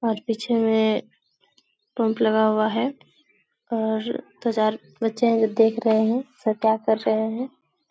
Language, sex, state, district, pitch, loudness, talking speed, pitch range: Hindi, female, Bihar, Supaul, 225 Hz, -23 LUFS, 160 wpm, 220-235 Hz